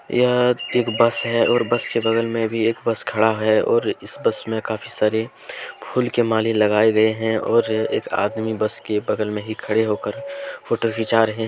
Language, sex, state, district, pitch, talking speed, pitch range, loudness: Hindi, male, Jharkhand, Deoghar, 115 Hz, 210 wpm, 110-115 Hz, -20 LUFS